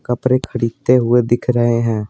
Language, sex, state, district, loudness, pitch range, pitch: Hindi, male, Bihar, Patna, -16 LUFS, 115-125 Hz, 120 Hz